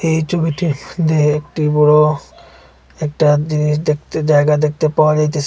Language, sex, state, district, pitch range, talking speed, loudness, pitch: Bengali, male, Assam, Hailakandi, 150-155 Hz, 130 wpm, -15 LUFS, 150 Hz